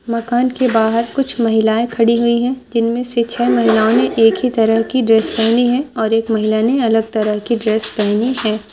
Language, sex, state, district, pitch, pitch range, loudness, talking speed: Hindi, female, Maharashtra, Nagpur, 230 Hz, 220-240 Hz, -15 LUFS, 200 wpm